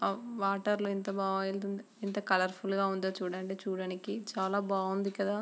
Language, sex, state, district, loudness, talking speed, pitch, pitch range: Telugu, female, Andhra Pradesh, Srikakulam, -34 LUFS, 165 wpm, 195 Hz, 190-200 Hz